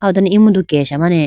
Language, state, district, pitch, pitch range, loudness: Idu Mishmi, Arunachal Pradesh, Lower Dibang Valley, 185 Hz, 155-195 Hz, -12 LUFS